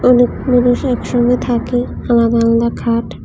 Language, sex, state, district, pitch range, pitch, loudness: Bengali, female, Tripura, West Tripura, 235-245 Hz, 245 Hz, -14 LUFS